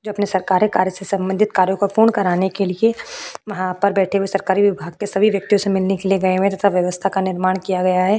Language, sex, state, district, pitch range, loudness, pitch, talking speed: Hindi, female, Uttar Pradesh, Jyotiba Phule Nagar, 185-200 Hz, -18 LUFS, 195 Hz, 265 wpm